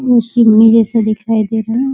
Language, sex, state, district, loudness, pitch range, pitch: Hindi, male, Bihar, Muzaffarpur, -11 LUFS, 220-235 Hz, 225 Hz